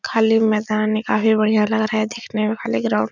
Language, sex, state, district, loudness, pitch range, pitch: Hindi, female, Uttar Pradesh, Etah, -19 LUFS, 215-220 Hz, 215 Hz